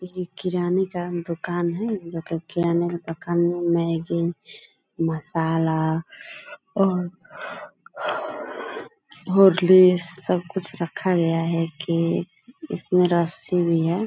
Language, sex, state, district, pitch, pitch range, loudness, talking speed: Hindi, female, Bihar, Purnia, 175 Hz, 165-190 Hz, -23 LUFS, 115 wpm